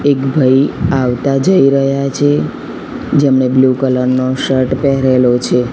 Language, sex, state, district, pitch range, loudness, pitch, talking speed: Gujarati, female, Gujarat, Gandhinagar, 130-140 Hz, -12 LUFS, 135 Hz, 135 wpm